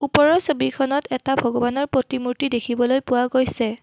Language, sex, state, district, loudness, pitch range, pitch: Assamese, female, Assam, Kamrup Metropolitan, -21 LUFS, 245-275 Hz, 255 Hz